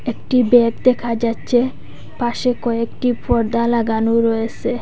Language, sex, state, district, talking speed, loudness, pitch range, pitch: Bengali, female, Assam, Hailakandi, 110 wpm, -18 LUFS, 230-245 Hz, 235 Hz